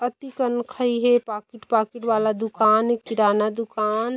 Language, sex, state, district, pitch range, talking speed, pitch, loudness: Hindi, female, Chhattisgarh, Kabirdham, 215-240 Hz, 160 wpm, 225 Hz, -22 LUFS